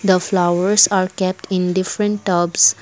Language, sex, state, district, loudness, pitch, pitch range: English, female, Assam, Kamrup Metropolitan, -16 LUFS, 185 Hz, 175-195 Hz